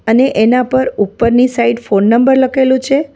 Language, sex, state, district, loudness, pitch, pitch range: Gujarati, female, Gujarat, Valsad, -12 LUFS, 250 Hz, 235-260 Hz